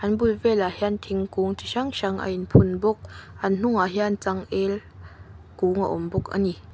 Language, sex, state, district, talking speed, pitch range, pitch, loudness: Mizo, female, Mizoram, Aizawl, 195 wpm, 185-205 Hz, 195 Hz, -24 LUFS